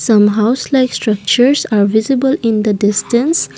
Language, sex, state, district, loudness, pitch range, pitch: English, female, Assam, Kamrup Metropolitan, -13 LUFS, 210-265 Hz, 230 Hz